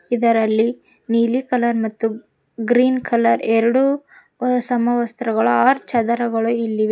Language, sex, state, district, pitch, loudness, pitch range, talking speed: Kannada, female, Karnataka, Koppal, 235 Hz, -18 LUFS, 225-250 Hz, 95 wpm